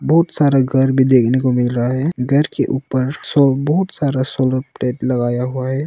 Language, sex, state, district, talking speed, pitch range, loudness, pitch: Hindi, male, Arunachal Pradesh, Longding, 195 wpm, 125-140 Hz, -16 LUFS, 130 Hz